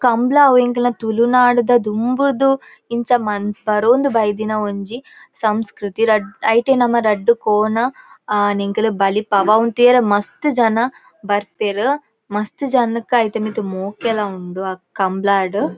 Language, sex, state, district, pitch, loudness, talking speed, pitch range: Tulu, female, Karnataka, Dakshina Kannada, 220 Hz, -17 LUFS, 125 wpm, 205-245 Hz